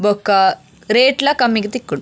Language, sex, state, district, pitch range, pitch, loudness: Tulu, female, Karnataka, Dakshina Kannada, 205-255 Hz, 225 Hz, -15 LUFS